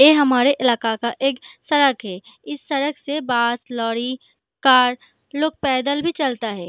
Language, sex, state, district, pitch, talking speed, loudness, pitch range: Hindi, female, Jharkhand, Sahebganj, 265 Hz, 160 wpm, -19 LUFS, 240-285 Hz